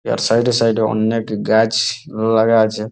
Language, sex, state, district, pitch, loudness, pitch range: Bengali, male, West Bengal, Jalpaiguri, 110 Hz, -16 LUFS, 110-115 Hz